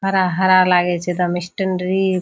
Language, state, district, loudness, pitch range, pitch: Surjapuri, Bihar, Kishanganj, -17 LUFS, 180-190 Hz, 185 Hz